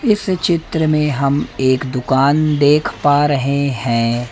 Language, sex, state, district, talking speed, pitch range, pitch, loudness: Hindi, male, Madhya Pradesh, Umaria, 140 wpm, 130-155 Hz, 140 Hz, -16 LUFS